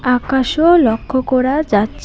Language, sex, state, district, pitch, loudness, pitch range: Bengali, female, West Bengal, Alipurduar, 260 Hz, -14 LUFS, 245-285 Hz